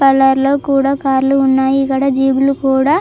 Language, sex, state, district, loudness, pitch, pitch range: Telugu, female, Andhra Pradesh, Chittoor, -13 LUFS, 270 Hz, 265-275 Hz